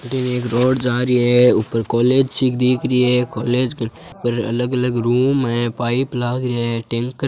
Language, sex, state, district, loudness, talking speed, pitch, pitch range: Marwari, male, Rajasthan, Churu, -17 LUFS, 190 wpm, 125 Hz, 120-125 Hz